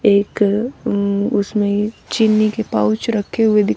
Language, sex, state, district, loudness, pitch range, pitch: Hindi, female, Haryana, Rohtak, -17 LUFS, 205-220 Hz, 210 Hz